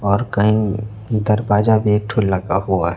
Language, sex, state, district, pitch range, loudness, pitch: Hindi, male, Chhattisgarh, Raipur, 100-110 Hz, -17 LUFS, 105 Hz